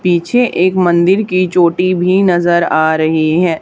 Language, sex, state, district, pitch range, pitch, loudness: Hindi, female, Haryana, Charkhi Dadri, 170-185 Hz, 175 Hz, -12 LUFS